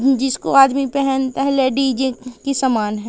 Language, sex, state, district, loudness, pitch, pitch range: Hindi, female, Madhya Pradesh, Katni, -17 LUFS, 265 Hz, 260-275 Hz